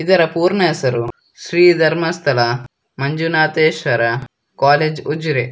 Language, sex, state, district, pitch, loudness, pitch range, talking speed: Kannada, male, Karnataka, Dakshina Kannada, 155 Hz, -16 LUFS, 130-165 Hz, 85 wpm